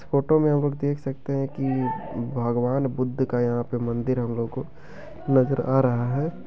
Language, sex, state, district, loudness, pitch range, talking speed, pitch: Maithili, male, Bihar, Begusarai, -24 LUFS, 120-140 Hz, 185 wpm, 130 Hz